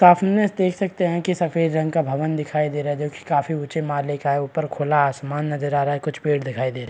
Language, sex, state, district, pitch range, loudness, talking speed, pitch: Hindi, male, Bihar, Araria, 145-165 Hz, -22 LUFS, 280 wpm, 150 Hz